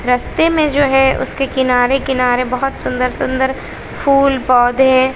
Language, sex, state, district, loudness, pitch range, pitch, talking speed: Hindi, female, Bihar, West Champaran, -14 LUFS, 250-270 Hz, 265 Hz, 140 wpm